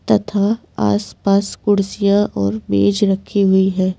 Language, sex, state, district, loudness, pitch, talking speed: Hindi, female, Delhi, New Delhi, -17 LUFS, 195 Hz, 150 wpm